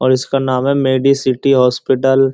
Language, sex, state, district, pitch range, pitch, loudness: Hindi, male, Uttar Pradesh, Jyotiba Phule Nagar, 130-135 Hz, 135 Hz, -14 LUFS